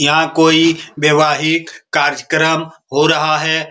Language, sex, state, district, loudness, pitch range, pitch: Hindi, male, Bihar, Supaul, -14 LUFS, 150-160 Hz, 160 Hz